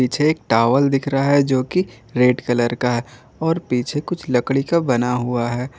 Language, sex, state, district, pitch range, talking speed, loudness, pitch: Hindi, male, Jharkhand, Garhwa, 120-140 Hz, 185 wpm, -19 LUFS, 125 Hz